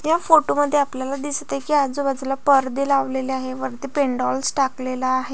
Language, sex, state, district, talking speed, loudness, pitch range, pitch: Marathi, female, Maharashtra, Pune, 170 wpm, -21 LUFS, 260-285 Hz, 270 Hz